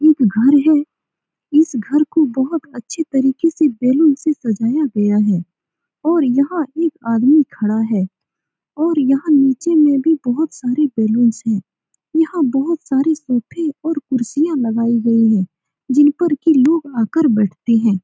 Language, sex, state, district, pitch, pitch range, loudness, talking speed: Hindi, female, Bihar, Saran, 275 Hz, 230-310 Hz, -16 LUFS, 160 wpm